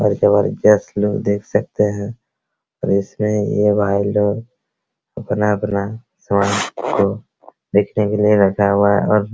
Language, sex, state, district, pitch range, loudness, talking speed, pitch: Hindi, male, Bihar, Araria, 100-105 Hz, -17 LUFS, 150 wpm, 105 Hz